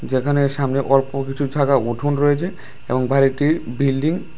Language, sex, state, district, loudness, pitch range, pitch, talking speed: Bengali, male, Tripura, West Tripura, -19 LUFS, 135-145 Hz, 140 Hz, 150 wpm